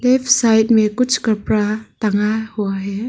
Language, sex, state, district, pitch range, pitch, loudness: Hindi, female, Arunachal Pradesh, Lower Dibang Valley, 210-230 Hz, 220 Hz, -17 LUFS